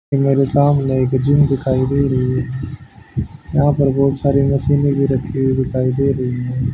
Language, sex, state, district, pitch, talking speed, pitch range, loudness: Hindi, male, Haryana, Jhajjar, 135 Hz, 160 wpm, 130-140 Hz, -16 LUFS